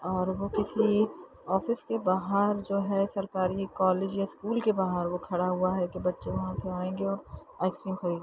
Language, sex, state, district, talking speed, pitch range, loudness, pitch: Hindi, female, Bihar, Saran, 190 wpm, 185-200 Hz, -30 LUFS, 190 Hz